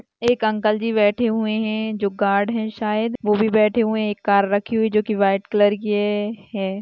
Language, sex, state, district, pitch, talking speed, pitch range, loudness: Hindi, female, Maharashtra, Aurangabad, 215 Hz, 220 wpm, 205-220 Hz, -20 LUFS